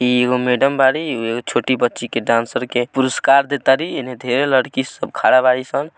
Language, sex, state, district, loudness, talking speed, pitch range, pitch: Hindi, male, Bihar, Gopalganj, -17 LUFS, 190 wpm, 125-135 Hz, 130 Hz